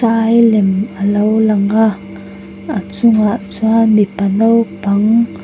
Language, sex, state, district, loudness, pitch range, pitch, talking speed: Mizo, female, Mizoram, Aizawl, -13 LUFS, 200-225 Hz, 210 Hz, 130 wpm